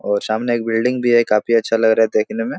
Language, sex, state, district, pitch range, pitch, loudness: Hindi, male, Bihar, Supaul, 110-120 Hz, 115 Hz, -17 LUFS